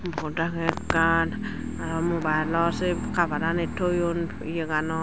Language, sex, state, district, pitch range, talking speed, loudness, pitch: Chakma, female, Tripura, Dhalai, 160-170 Hz, 145 wpm, -26 LUFS, 165 Hz